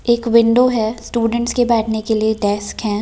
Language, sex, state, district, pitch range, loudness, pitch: Hindi, female, Delhi, New Delhi, 220-235 Hz, -16 LUFS, 230 Hz